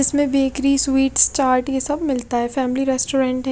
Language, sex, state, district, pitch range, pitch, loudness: Hindi, female, Chhattisgarh, Raipur, 260-275 Hz, 270 Hz, -18 LUFS